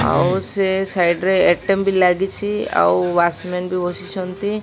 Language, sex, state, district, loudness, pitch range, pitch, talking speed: Odia, female, Odisha, Malkangiri, -18 LUFS, 180-195 Hz, 190 Hz, 140 wpm